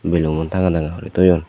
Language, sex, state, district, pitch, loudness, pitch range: Chakma, male, Tripura, Dhalai, 85 Hz, -18 LUFS, 80-90 Hz